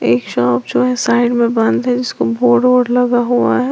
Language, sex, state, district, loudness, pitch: Hindi, female, Uttar Pradesh, Lalitpur, -14 LUFS, 235 Hz